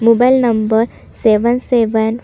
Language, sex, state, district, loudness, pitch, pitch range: Hindi, female, Chhattisgarh, Sukma, -14 LUFS, 230 Hz, 220-245 Hz